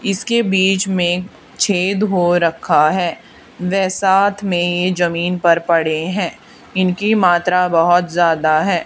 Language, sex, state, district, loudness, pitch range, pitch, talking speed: Hindi, female, Haryana, Charkhi Dadri, -16 LUFS, 175-195 Hz, 180 Hz, 135 wpm